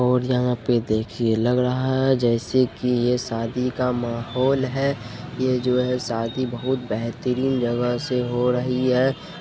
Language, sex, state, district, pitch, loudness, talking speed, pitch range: Hindi, male, Bihar, Purnia, 125 Hz, -22 LUFS, 160 wpm, 120-130 Hz